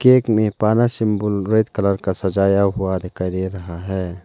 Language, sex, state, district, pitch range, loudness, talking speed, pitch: Hindi, male, Arunachal Pradesh, Lower Dibang Valley, 95-110 Hz, -19 LUFS, 170 wpm, 100 Hz